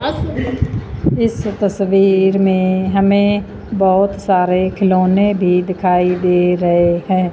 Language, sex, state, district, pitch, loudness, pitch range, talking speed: Hindi, female, Punjab, Fazilka, 190 Hz, -15 LUFS, 180-195 Hz, 100 wpm